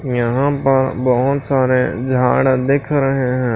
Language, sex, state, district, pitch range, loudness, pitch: Hindi, male, Maharashtra, Washim, 125-135 Hz, -16 LUFS, 130 Hz